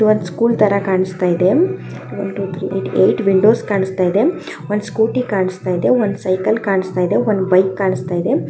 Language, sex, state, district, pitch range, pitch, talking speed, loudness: Kannada, female, Karnataka, Chamarajanagar, 185-210 Hz, 195 Hz, 220 wpm, -16 LUFS